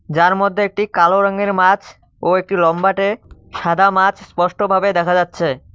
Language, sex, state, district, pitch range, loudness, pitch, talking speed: Bengali, male, West Bengal, Cooch Behar, 175-200 Hz, -16 LUFS, 190 Hz, 155 wpm